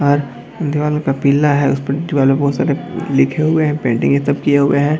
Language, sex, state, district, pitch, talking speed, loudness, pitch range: Hindi, male, Bihar, Darbhanga, 140 Hz, 250 wpm, -15 LUFS, 140-150 Hz